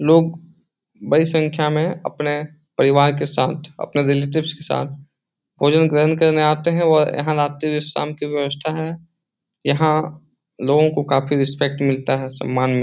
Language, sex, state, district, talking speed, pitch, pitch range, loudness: Hindi, male, Bihar, Jahanabad, 150 wpm, 150 Hz, 140-160 Hz, -18 LUFS